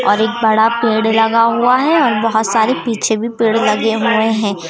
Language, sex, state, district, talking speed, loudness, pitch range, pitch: Hindi, female, Madhya Pradesh, Umaria, 205 wpm, -14 LUFS, 220-230 Hz, 225 Hz